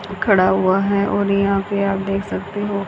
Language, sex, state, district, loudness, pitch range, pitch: Hindi, female, Haryana, Charkhi Dadri, -18 LUFS, 195-200 Hz, 200 Hz